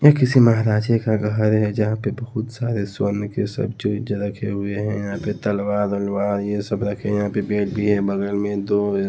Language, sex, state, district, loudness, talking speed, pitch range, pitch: Hindi, male, Haryana, Rohtak, -21 LUFS, 220 wpm, 100-110 Hz, 105 Hz